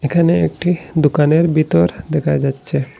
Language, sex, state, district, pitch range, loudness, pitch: Bengali, male, Assam, Hailakandi, 140-165 Hz, -16 LUFS, 150 Hz